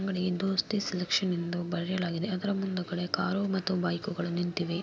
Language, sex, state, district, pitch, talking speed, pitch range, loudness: Kannada, female, Karnataka, Mysore, 185 Hz, 135 wpm, 175-195 Hz, -31 LUFS